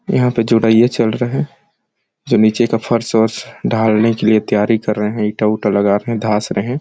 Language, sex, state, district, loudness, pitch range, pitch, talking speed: Hindi, male, Chhattisgarh, Sarguja, -15 LUFS, 105-120 Hz, 110 Hz, 230 wpm